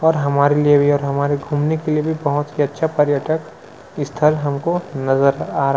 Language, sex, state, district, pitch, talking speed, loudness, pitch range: Hindi, male, Chhattisgarh, Sukma, 145 Hz, 230 wpm, -18 LUFS, 140-155 Hz